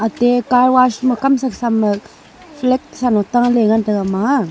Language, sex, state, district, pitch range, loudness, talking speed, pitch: Wancho, female, Arunachal Pradesh, Longding, 220-255 Hz, -15 LUFS, 175 wpm, 245 Hz